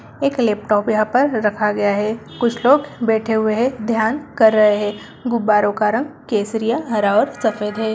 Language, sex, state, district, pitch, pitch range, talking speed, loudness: Hindi, female, Bihar, Begusarai, 220 Hz, 210-235 Hz, 180 wpm, -18 LUFS